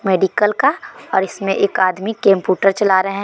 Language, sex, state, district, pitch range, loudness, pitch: Hindi, female, Jharkhand, Deoghar, 190-210 Hz, -16 LUFS, 195 Hz